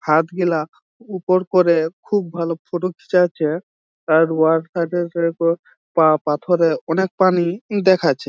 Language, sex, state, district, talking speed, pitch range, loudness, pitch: Bengali, male, West Bengal, Jhargram, 125 wpm, 160-185 Hz, -18 LUFS, 170 Hz